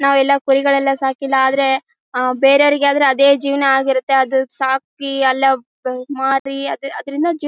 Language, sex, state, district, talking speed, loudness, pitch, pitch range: Kannada, female, Karnataka, Bellary, 145 wpm, -15 LUFS, 275 Hz, 265-280 Hz